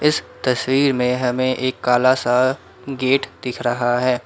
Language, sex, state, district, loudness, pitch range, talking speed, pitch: Hindi, male, Assam, Kamrup Metropolitan, -19 LUFS, 125-130 Hz, 155 wpm, 130 Hz